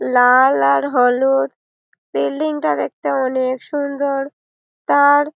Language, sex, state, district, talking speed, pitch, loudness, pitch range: Bengali, female, West Bengal, Malda, 100 wpm, 260 Hz, -17 LUFS, 245-285 Hz